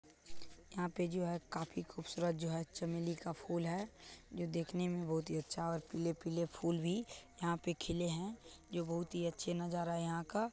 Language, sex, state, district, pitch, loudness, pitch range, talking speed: Hindi, male, Bihar, Purnia, 170 Hz, -41 LUFS, 165-175 Hz, 200 wpm